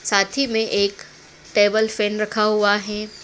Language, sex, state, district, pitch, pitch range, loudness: Hindi, female, Madhya Pradesh, Dhar, 210 Hz, 205-220 Hz, -20 LUFS